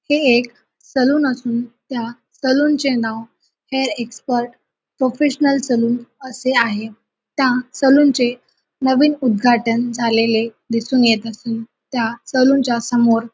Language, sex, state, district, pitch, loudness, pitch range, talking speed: Marathi, female, Maharashtra, Sindhudurg, 245 Hz, -17 LUFS, 230-265 Hz, 115 wpm